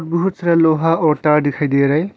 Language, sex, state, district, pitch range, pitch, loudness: Hindi, male, Arunachal Pradesh, Longding, 150-170 Hz, 160 Hz, -15 LUFS